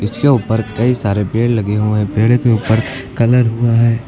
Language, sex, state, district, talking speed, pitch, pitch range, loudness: Hindi, male, Uttar Pradesh, Lucknow, 205 wpm, 115 Hz, 105-120 Hz, -14 LUFS